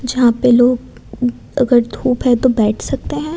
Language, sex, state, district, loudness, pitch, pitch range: Hindi, female, Gujarat, Gandhinagar, -15 LUFS, 245 Hz, 240-255 Hz